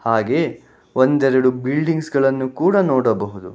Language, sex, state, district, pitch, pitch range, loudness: Kannada, male, Karnataka, Bangalore, 135 Hz, 130-150 Hz, -18 LUFS